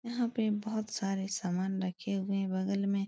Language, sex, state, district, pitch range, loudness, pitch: Hindi, female, Uttar Pradesh, Etah, 190-215 Hz, -34 LUFS, 195 Hz